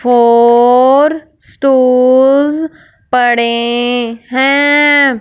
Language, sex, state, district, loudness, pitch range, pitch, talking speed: Hindi, female, Punjab, Fazilka, -10 LUFS, 240-280 Hz, 255 Hz, 45 wpm